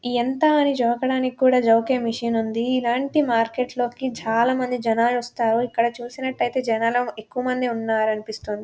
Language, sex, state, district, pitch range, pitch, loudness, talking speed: Telugu, female, Telangana, Nalgonda, 230-255 Hz, 240 Hz, -22 LUFS, 155 wpm